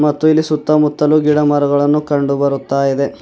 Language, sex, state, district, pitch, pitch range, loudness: Kannada, male, Karnataka, Bidar, 150 Hz, 140-150 Hz, -14 LUFS